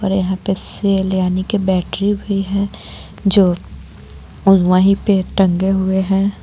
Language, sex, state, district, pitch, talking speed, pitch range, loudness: Hindi, female, Jharkhand, Garhwa, 190 Hz, 150 wpm, 185-195 Hz, -16 LUFS